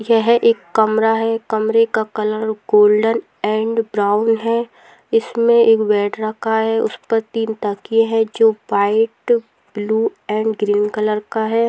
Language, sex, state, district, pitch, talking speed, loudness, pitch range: Hindi, female, Bihar, Samastipur, 220 Hz, 150 wpm, -17 LUFS, 215-225 Hz